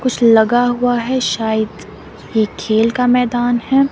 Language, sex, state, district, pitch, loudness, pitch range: Hindi, female, Himachal Pradesh, Shimla, 240 Hz, -15 LUFS, 220-250 Hz